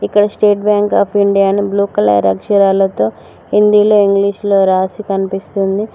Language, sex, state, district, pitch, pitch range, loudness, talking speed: Telugu, female, Telangana, Mahabubabad, 200 Hz, 195-205 Hz, -13 LUFS, 140 wpm